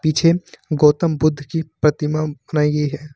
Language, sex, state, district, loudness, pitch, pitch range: Hindi, male, Jharkhand, Ranchi, -19 LUFS, 150 Hz, 150-160 Hz